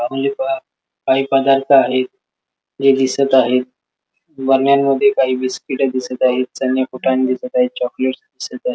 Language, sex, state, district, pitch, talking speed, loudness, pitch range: Marathi, male, Maharashtra, Sindhudurg, 130 Hz, 125 wpm, -16 LUFS, 130-135 Hz